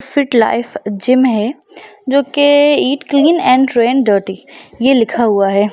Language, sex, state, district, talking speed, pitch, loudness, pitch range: Hindi, female, Bihar, Lakhisarai, 155 wpm, 255 Hz, -13 LUFS, 220-280 Hz